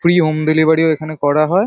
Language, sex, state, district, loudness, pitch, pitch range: Bengali, male, West Bengal, Paschim Medinipur, -14 LUFS, 155 Hz, 155-170 Hz